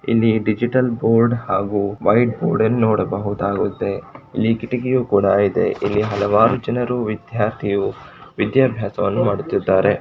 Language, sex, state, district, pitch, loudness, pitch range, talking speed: Kannada, male, Karnataka, Shimoga, 110 Hz, -18 LUFS, 100-120 Hz, 110 wpm